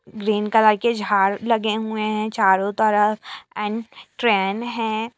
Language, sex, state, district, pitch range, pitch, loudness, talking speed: Hindi, female, Bihar, Saran, 210-225 Hz, 215 Hz, -20 LUFS, 140 wpm